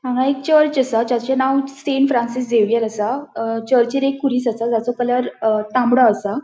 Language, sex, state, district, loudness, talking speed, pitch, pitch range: Konkani, female, Goa, North and South Goa, -18 LUFS, 170 wpm, 250 Hz, 230-270 Hz